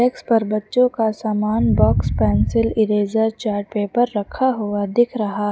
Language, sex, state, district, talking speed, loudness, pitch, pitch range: Hindi, male, Uttar Pradesh, Lucknow, 165 wpm, -19 LUFS, 215 Hz, 205-230 Hz